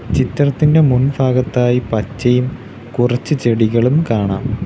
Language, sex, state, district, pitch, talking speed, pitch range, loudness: Malayalam, male, Kerala, Kollam, 125 Hz, 75 wpm, 115-135 Hz, -15 LUFS